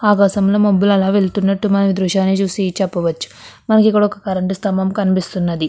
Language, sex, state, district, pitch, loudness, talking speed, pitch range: Telugu, female, Andhra Pradesh, Krishna, 195 Hz, -16 LUFS, 160 wpm, 190-205 Hz